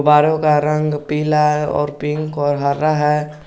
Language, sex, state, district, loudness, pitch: Hindi, male, Jharkhand, Garhwa, -17 LUFS, 150 Hz